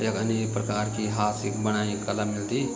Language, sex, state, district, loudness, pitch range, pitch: Garhwali, male, Uttarakhand, Tehri Garhwal, -27 LUFS, 105-110 Hz, 105 Hz